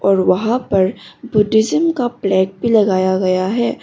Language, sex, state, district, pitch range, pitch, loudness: Hindi, female, Arunachal Pradesh, Longding, 190-235 Hz, 205 Hz, -16 LUFS